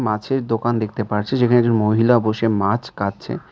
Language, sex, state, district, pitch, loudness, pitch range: Bengali, male, West Bengal, Cooch Behar, 115 Hz, -19 LUFS, 105-120 Hz